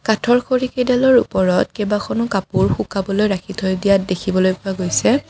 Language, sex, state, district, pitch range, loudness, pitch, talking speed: Assamese, female, Assam, Kamrup Metropolitan, 190-240 Hz, -17 LUFS, 200 Hz, 145 wpm